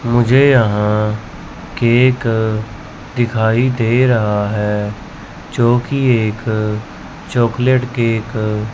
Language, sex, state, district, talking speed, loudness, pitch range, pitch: Hindi, male, Chandigarh, Chandigarh, 90 wpm, -15 LUFS, 110-125 Hz, 115 Hz